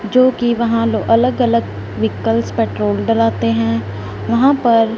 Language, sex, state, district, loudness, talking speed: Hindi, female, Punjab, Fazilka, -15 LUFS, 145 wpm